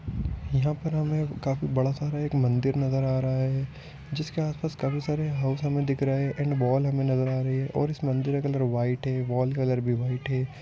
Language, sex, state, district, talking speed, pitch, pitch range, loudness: Hindi, male, Andhra Pradesh, Krishna, 225 wpm, 135 Hz, 130-145 Hz, -27 LUFS